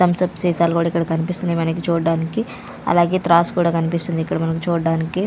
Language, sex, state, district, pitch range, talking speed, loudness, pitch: Telugu, female, Andhra Pradesh, Manyam, 165-175 Hz, 170 wpm, -19 LUFS, 170 Hz